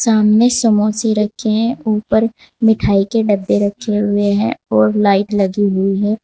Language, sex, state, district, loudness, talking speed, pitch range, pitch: Hindi, female, Uttar Pradesh, Saharanpur, -15 LUFS, 155 wpm, 205-225 Hz, 210 Hz